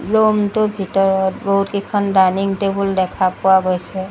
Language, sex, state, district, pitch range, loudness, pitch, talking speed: Assamese, female, Assam, Sonitpur, 190-200 Hz, -17 LUFS, 195 Hz, 130 wpm